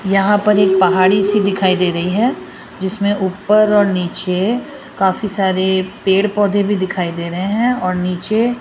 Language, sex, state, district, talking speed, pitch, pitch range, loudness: Hindi, female, Rajasthan, Jaipur, 175 wpm, 195 Hz, 185-210 Hz, -15 LUFS